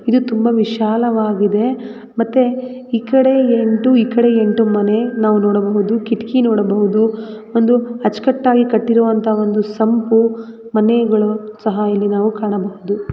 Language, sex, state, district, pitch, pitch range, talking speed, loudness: Kannada, female, Karnataka, Raichur, 225 Hz, 215-235 Hz, 115 wpm, -15 LUFS